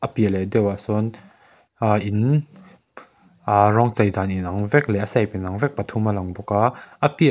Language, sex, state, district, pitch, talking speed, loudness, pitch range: Mizo, male, Mizoram, Aizawl, 105 Hz, 220 wpm, -21 LUFS, 100-125 Hz